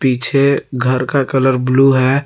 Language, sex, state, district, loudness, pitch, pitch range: Hindi, male, Jharkhand, Garhwa, -14 LUFS, 130 Hz, 130-135 Hz